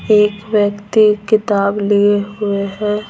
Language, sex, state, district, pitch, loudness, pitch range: Hindi, female, Bihar, Patna, 205 Hz, -15 LUFS, 205-210 Hz